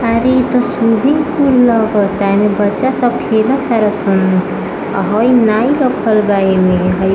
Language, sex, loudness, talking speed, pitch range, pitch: Bhojpuri, female, -12 LUFS, 160 wpm, 200-250 Hz, 220 Hz